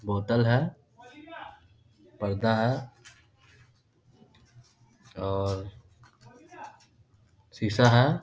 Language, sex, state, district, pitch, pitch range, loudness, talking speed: Hindi, male, Bihar, Darbhanga, 115 Hz, 105-120 Hz, -26 LUFS, 50 wpm